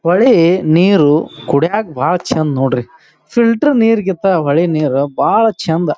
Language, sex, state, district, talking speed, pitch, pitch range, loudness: Kannada, male, Karnataka, Bijapur, 130 wpm, 170 Hz, 155-200 Hz, -13 LUFS